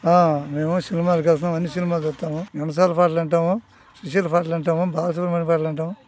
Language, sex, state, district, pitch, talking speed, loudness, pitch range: Telugu, male, Andhra Pradesh, Guntur, 170 Hz, 175 wpm, -21 LUFS, 165-175 Hz